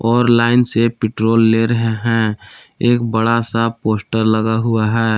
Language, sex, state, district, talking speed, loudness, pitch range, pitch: Hindi, male, Jharkhand, Palamu, 160 wpm, -15 LUFS, 110-115 Hz, 115 Hz